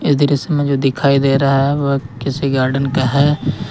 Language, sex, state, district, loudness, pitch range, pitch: Hindi, male, Jharkhand, Ranchi, -15 LUFS, 135-145 Hz, 140 Hz